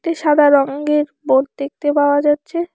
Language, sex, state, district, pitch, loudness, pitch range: Bengali, female, West Bengal, Alipurduar, 295 Hz, -16 LUFS, 285-300 Hz